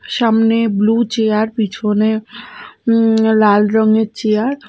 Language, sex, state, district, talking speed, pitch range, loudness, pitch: Bengali, female, Odisha, Malkangiri, 115 wpm, 215-225 Hz, -14 LUFS, 220 Hz